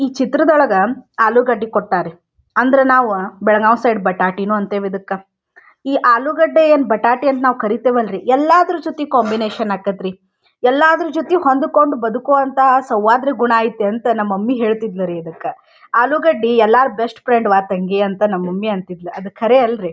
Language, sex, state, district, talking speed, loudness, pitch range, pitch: Kannada, female, Karnataka, Dharwad, 150 wpm, -15 LUFS, 200-265 Hz, 230 Hz